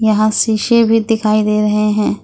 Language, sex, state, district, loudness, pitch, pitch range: Hindi, female, Jharkhand, Ranchi, -13 LUFS, 215 Hz, 210-225 Hz